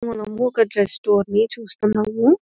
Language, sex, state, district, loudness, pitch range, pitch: Telugu, female, Telangana, Nalgonda, -20 LUFS, 210-230 Hz, 215 Hz